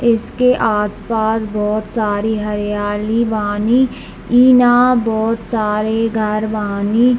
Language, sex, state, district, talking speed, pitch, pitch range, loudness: Hindi, female, Bihar, East Champaran, 100 wpm, 220 Hz, 210-235 Hz, -16 LUFS